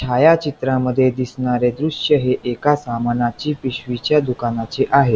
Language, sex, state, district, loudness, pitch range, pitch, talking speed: Marathi, male, Maharashtra, Pune, -18 LUFS, 125-145 Hz, 130 Hz, 105 wpm